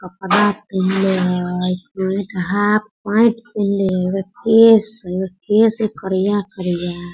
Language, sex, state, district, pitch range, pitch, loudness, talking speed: Hindi, female, Bihar, Sitamarhi, 185-210 Hz, 195 Hz, -17 LUFS, 125 wpm